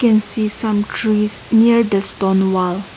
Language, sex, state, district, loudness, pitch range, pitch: English, female, Nagaland, Kohima, -14 LUFS, 195-220 Hz, 210 Hz